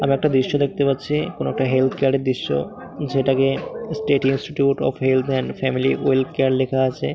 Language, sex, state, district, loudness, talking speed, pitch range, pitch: Bengali, male, West Bengal, Paschim Medinipur, -20 LUFS, 185 wpm, 130-140 Hz, 135 Hz